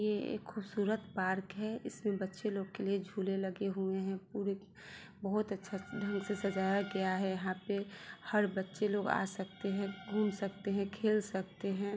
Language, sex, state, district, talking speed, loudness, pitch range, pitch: Hindi, female, Bihar, Sitamarhi, 180 wpm, -37 LUFS, 190-205 Hz, 200 Hz